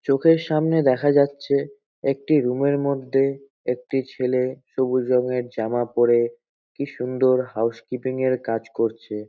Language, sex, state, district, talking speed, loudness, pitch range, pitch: Bengali, male, West Bengal, North 24 Parganas, 130 wpm, -22 LUFS, 125-140 Hz, 130 Hz